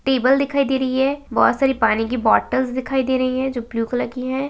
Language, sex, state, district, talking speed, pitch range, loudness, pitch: Hindi, female, Uttarakhand, Tehri Garhwal, 255 wpm, 250-270 Hz, -19 LUFS, 260 Hz